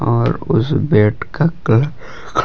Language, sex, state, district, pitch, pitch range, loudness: Hindi, male, Jharkhand, Palamu, 145 Hz, 115-175 Hz, -16 LUFS